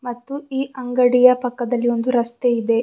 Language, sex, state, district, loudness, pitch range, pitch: Kannada, female, Karnataka, Bidar, -19 LUFS, 240-255 Hz, 245 Hz